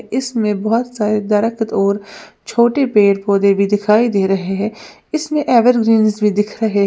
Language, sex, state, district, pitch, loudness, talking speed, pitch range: Hindi, female, Uttar Pradesh, Lalitpur, 215 Hz, -15 LUFS, 155 wpm, 205-235 Hz